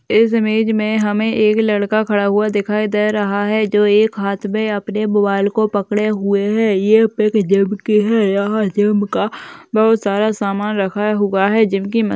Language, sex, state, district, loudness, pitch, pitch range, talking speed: Hindi, female, Uttar Pradesh, Ghazipur, -16 LUFS, 210 Hz, 205-215 Hz, 175 wpm